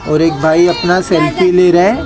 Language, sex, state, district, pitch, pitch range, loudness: Hindi, male, Maharashtra, Mumbai Suburban, 175 Hz, 165-180 Hz, -11 LUFS